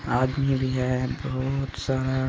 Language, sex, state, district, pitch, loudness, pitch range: Hindi, male, Bihar, Araria, 130 Hz, -26 LUFS, 130-135 Hz